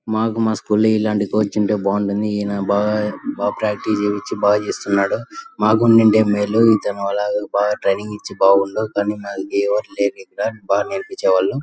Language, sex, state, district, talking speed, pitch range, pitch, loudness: Telugu, male, Andhra Pradesh, Anantapur, 155 wpm, 100-110 Hz, 105 Hz, -18 LUFS